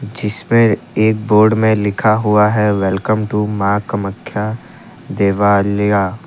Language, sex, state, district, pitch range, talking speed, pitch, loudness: Hindi, male, Assam, Kamrup Metropolitan, 100-110 Hz, 115 wpm, 105 Hz, -15 LUFS